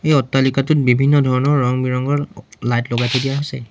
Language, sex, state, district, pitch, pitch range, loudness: Assamese, male, Assam, Sonitpur, 130 Hz, 125-140 Hz, -17 LUFS